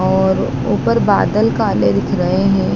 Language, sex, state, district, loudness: Hindi, female, Madhya Pradesh, Dhar, -15 LUFS